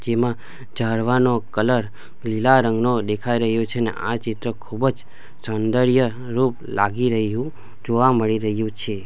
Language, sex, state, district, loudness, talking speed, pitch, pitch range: Gujarati, male, Gujarat, Valsad, -21 LUFS, 140 wpm, 115 Hz, 110-125 Hz